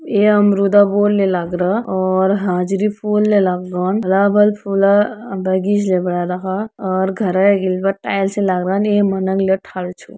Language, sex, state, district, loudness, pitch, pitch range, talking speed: Hindi, female, Uttarakhand, Uttarkashi, -16 LUFS, 195 Hz, 185-205 Hz, 160 wpm